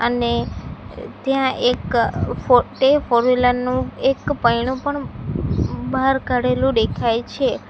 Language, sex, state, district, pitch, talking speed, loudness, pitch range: Gujarati, female, Gujarat, Valsad, 250 Hz, 110 wpm, -19 LUFS, 240-265 Hz